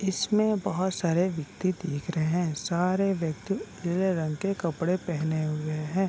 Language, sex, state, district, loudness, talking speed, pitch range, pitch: Hindi, male, Bihar, Sitamarhi, -28 LUFS, 160 wpm, 160-190 Hz, 175 Hz